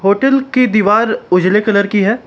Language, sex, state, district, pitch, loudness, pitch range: Hindi, male, Jharkhand, Palamu, 210 Hz, -12 LUFS, 200-245 Hz